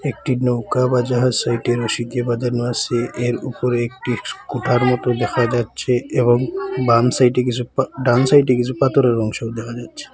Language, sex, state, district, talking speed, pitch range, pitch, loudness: Bengali, male, Assam, Hailakandi, 160 wpm, 120-130 Hz, 125 Hz, -18 LUFS